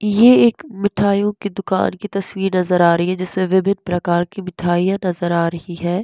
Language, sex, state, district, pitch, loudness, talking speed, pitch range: Hindi, female, Bihar, West Champaran, 185 Hz, -17 LUFS, 200 wpm, 175-200 Hz